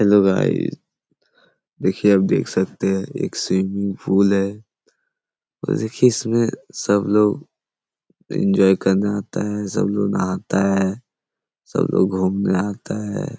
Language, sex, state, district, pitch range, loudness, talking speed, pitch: Hindi, male, Chhattisgarh, Korba, 95-105 Hz, -20 LUFS, 135 wpm, 100 Hz